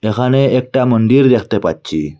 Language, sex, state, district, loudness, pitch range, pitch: Bengali, male, Assam, Hailakandi, -13 LUFS, 110-130 Hz, 125 Hz